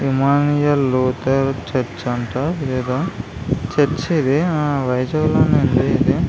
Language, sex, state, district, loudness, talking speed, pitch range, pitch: Telugu, male, Andhra Pradesh, Visakhapatnam, -18 LUFS, 115 wpm, 130-145 Hz, 135 Hz